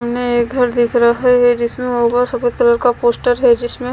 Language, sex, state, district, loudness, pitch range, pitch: Hindi, female, Maharashtra, Gondia, -14 LUFS, 240-245 Hz, 245 Hz